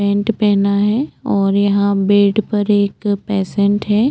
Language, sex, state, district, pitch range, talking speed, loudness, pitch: Hindi, female, Chhattisgarh, Bastar, 200-210 Hz, 145 wpm, -15 LUFS, 200 Hz